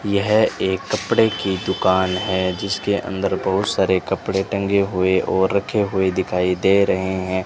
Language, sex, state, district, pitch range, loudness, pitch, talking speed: Hindi, male, Rajasthan, Bikaner, 95-100 Hz, -19 LUFS, 95 Hz, 160 wpm